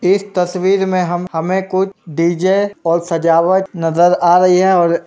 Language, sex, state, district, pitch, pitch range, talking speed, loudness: Hindi, male, Uttar Pradesh, Budaun, 180 Hz, 170-190 Hz, 175 wpm, -14 LUFS